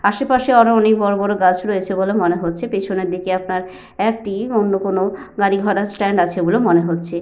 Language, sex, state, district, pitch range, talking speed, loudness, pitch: Bengali, female, Jharkhand, Sahebganj, 185-210 Hz, 190 wpm, -17 LUFS, 195 Hz